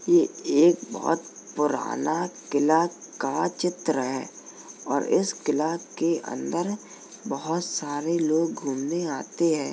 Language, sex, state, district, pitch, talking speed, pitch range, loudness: Hindi, male, Uttar Pradesh, Jalaun, 165 Hz, 115 wpm, 150-175 Hz, -26 LUFS